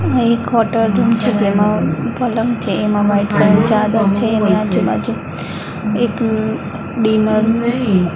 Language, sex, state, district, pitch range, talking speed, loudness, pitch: Gujarati, female, Maharashtra, Mumbai Suburban, 205-230 Hz, 140 wpm, -15 LUFS, 220 Hz